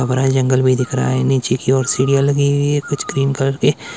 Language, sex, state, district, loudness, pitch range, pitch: Hindi, male, Himachal Pradesh, Shimla, -16 LUFS, 130-140 Hz, 135 Hz